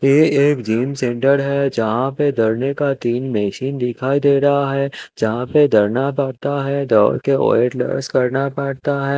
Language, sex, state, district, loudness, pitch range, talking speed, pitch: Hindi, male, Chandigarh, Chandigarh, -17 LUFS, 125-140 Hz, 175 wpm, 135 Hz